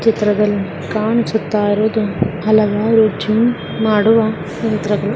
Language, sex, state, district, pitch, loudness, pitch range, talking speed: Kannada, female, Karnataka, Mysore, 215 Hz, -16 LUFS, 205-220 Hz, 95 wpm